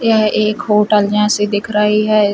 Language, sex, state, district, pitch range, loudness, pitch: Hindi, female, Chhattisgarh, Rajnandgaon, 210-215 Hz, -14 LUFS, 210 Hz